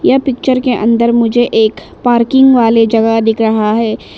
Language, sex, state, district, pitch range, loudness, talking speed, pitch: Hindi, female, Arunachal Pradesh, Lower Dibang Valley, 225-245 Hz, -11 LUFS, 170 wpm, 230 Hz